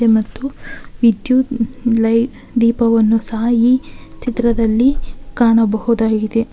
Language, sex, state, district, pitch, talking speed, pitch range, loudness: Kannada, female, Karnataka, Belgaum, 230 Hz, 85 wpm, 225-245 Hz, -15 LUFS